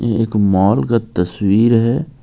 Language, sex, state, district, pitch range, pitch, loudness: Hindi, male, Jharkhand, Ranchi, 100-115 Hz, 115 Hz, -15 LUFS